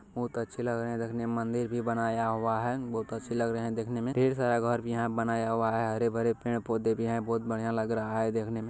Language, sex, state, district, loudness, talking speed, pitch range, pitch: Maithili, male, Bihar, Kishanganj, -31 LUFS, 260 wpm, 115-120 Hz, 115 Hz